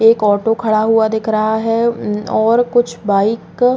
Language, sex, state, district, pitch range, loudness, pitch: Hindi, female, Uttar Pradesh, Jalaun, 215-230 Hz, -15 LUFS, 220 Hz